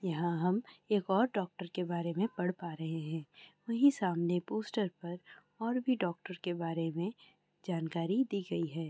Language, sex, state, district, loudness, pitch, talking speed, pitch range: Hindi, female, Bihar, Kishanganj, -35 LUFS, 180 Hz, 175 wpm, 170-205 Hz